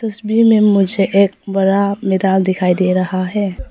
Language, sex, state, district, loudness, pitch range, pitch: Hindi, female, Arunachal Pradesh, Papum Pare, -14 LUFS, 185-205 Hz, 195 Hz